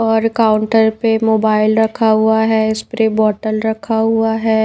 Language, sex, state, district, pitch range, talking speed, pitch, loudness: Hindi, female, Haryana, Rohtak, 220-225 Hz, 155 wpm, 220 Hz, -14 LUFS